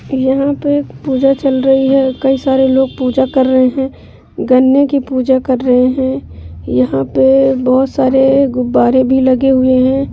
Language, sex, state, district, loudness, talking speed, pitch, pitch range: Hindi, female, Bihar, Begusarai, -12 LUFS, 165 wpm, 265 Hz, 255-270 Hz